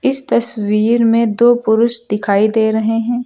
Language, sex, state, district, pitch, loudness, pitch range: Hindi, female, Uttar Pradesh, Lucknow, 225 Hz, -14 LUFS, 220-240 Hz